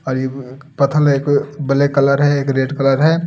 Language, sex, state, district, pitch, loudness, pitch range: Hindi, male, Delhi, New Delhi, 140 Hz, -15 LUFS, 135-145 Hz